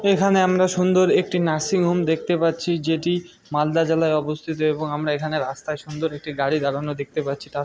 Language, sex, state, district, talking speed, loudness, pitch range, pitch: Bengali, male, West Bengal, Malda, 180 wpm, -22 LUFS, 150-175 Hz, 160 Hz